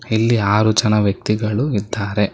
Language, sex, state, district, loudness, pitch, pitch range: Kannada, male, Karnataka, Bangalore, -17 LUFS, 105 Hz, 105-110 Hz